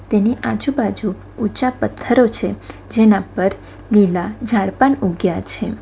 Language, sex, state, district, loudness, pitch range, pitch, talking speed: Gujarati, female, Gujarat, Valsad, -17 LUFS, 195-240 Hz, 215 Hz, 125 wpm